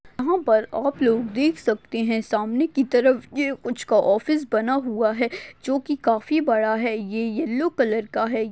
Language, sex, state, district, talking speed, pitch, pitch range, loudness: Hindi, female, Maharashtra, Chandrapur, 190 wpm, 240 Hz, 225-280 Hz, -22 LUFS